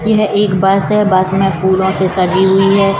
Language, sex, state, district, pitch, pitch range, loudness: Hindi, female, Madhya Pradesh, Katni, 190 Hz, 190-200 Hz, -12 LUFS